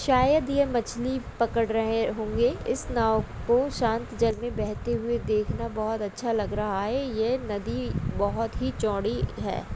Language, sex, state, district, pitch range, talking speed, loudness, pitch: Hindi, female, Rajasthan, Nagaur, 220-245 Hz, 165 wpm, -27 LUFS, 230 Hz